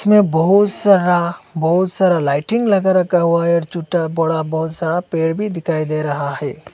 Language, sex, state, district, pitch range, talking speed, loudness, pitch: Hindi, male, Assam, Hailakandi, 160-185 Hz, 180 wpm, -16 LUFS, 170 Hz